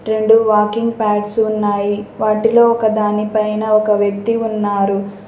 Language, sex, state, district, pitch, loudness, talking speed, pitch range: Telugu, female, Telangana, Mahabubabad, 215 Hz, -15 LUFS, 115 wpm, 205-220 Hz